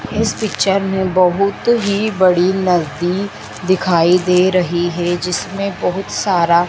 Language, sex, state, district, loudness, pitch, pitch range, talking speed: Hindi, female, Madhya Pradesh, Dhar, -16 LUFS, 185 Hz, 175-195 Hz, 125 wpm